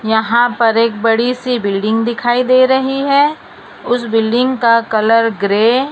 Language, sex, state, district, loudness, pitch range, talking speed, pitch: Hindi, female, Maharashtra, Mumbai Suburban, -13 LUFS, 225-250 Hz, 160 wpm, 235 Hz